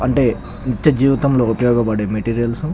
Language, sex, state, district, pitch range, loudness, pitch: Telugu, male, Telangana, Nalgonda, 115-135 Hz, -17 LUFS, 120 Hz